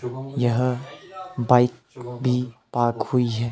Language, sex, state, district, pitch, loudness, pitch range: Hindi, male, Himachal Pradesh, Shimla, 125 Hz, -23 LUFS, 120-125 Hz